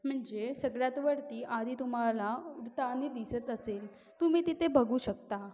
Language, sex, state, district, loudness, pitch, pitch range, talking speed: Marathi, female, Maharashtra, Aurangabad, -34 LUFS, 250 Hz, 225-275 Hz, 130 wpm